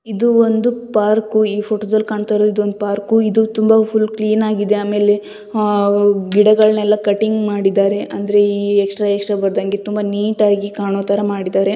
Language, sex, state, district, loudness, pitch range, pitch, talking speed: Kannada, female, Karnataka, Gulbarga, -15 LUFS, 205-215 Hz, 210 Hz, 150 wpm